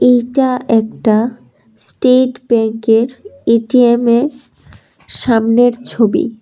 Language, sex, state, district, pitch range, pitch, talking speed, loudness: Bengali, female, Tripura, West Tripura, 225-250 Hz, 235 Hz, 75 wpm, -13 LUFS